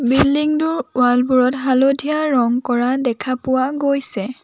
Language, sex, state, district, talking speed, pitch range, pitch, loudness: Assamese, female, Assam, Sonitpur, 135 wpm, 250-280 Hz, 260 Hz, -17 LUFS